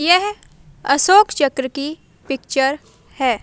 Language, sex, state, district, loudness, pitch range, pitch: Hindi, female, Madhya Pradesh, Umaria, -17 LUFS, 270-360 Hz, 285 Hz